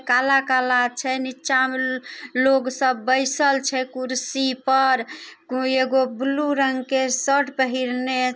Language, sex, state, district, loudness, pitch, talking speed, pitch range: Maithili, female, Bihar, Samastipur, -21 LUFS, 260 Hz, 130 wpm, 255-270 Hz